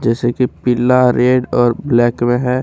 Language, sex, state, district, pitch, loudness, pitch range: Hindi, male, Jharkhand, Palamu, 125 Hz, -14 LUFS, 120-125 Hz